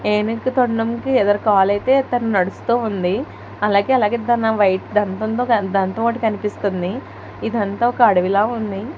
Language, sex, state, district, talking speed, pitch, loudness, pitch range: Telugu, female, Telangana, Hyderabad, 80 wpm, 215 Hz, -18 LUFS, 200-235 Hz